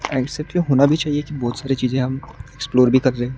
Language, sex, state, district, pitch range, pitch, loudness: Hindi, male, Maharashtra, Gondia, 125-150 Hz, 130 Hz, -19 LUFS